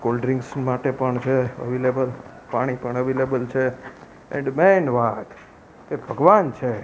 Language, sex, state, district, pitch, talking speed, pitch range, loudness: Gujarati, male, Gujarat, Gandhinagar, 130 Hz, 130 wpm, 125-130 Hz, -21 LUFS